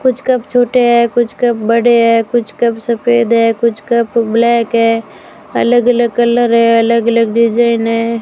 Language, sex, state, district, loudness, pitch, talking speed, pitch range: Hindi, female, Rajasthan, Bikaner, -12 LUFS, 235 Hz, 175 wpm, 230-240 Hz